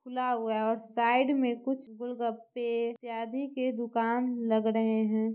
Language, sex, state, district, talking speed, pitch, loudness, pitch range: Hindi, female, Bihar, Muzaffarpur, 155 wpm, 235 Hz, -30 LUFS, 225-250 Hz